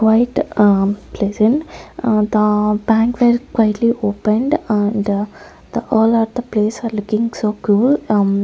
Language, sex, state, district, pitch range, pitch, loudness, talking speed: English, female, Chandigarh, Chandigarh, 210-235 Hz, 220 Hz, -16 LUFS, 150 wpm